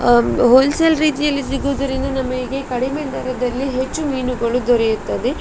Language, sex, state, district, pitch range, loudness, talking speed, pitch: Kannada, female, Karnataka, Dakshina Kannada, 250-280 Hz, -18 LUFS, 120 wpm, 265 Hz